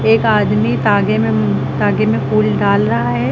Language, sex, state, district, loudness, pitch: Hindi, female, Uttar Pradesh, Lucknow, -14 LUFS, 105 Hz